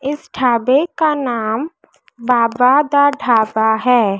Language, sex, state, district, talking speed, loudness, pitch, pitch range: Hindi, female, Madhya Pradesh, Dhar, 115 wpm, -15 LUFS, 250 Hz, 230-285 Hz